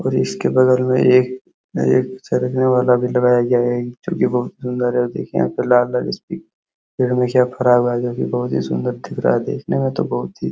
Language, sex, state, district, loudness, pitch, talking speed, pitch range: Hindi, male, Uttar Pradesh, Hamirpur, -18 LUFS, 125 Hz, 235 wpm, 120-125 Hz